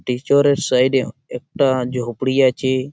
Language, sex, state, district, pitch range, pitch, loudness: Bengali, male, West Bengal, Malda, 125-135 Hz, 130 Hz, -18 LUFS